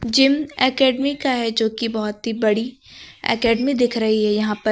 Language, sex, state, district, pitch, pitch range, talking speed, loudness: Hindi, female, Uttar Pradesh, Lucknow, 230 Hz, 220-260 Hz, 175 wpm, -19 LUFS